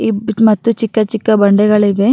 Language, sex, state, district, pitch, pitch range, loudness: Kannada, female, Karnataka, Raichur, 220 Hz, 210-225 Hz, -12 LUFS